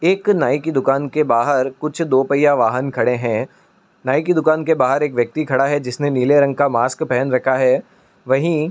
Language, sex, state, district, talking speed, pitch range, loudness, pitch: Hindi, male, Uttar Pradesh, Etah, 215 wpm, 130-155 Hz, -17 LUFS, 140 Hz